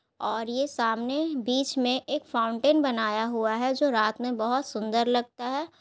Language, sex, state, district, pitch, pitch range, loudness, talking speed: Hindi, female, Bihar, Gaya, 245 Hz, 225-275 Hz, -27 LUFS, 175 wpm